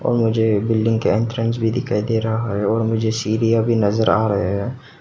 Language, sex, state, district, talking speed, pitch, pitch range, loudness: Hindi, male, Arunachal Pradesh, Papum Pare, 215 wpm, 110 Hz, 110-115 Hz, -19 LUFS